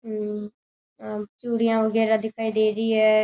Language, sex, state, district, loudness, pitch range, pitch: Rajasthani, female, Rajasthan, Churu, -24 LUFS, 215-225 Hz, 220 Hz